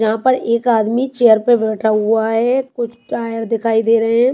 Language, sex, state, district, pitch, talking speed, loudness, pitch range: Hindi, female, Haryana, Charkhi Dadri, 230 Hz, 205 wpm, -15 LUFS, 225-240 Hz